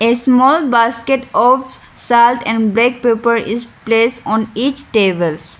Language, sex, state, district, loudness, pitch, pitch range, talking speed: English, female, Arunachal Pradesh, Lower Dibang Valley, -14 LUFS, 235 Hz, 225-250 Hz, 140 wpm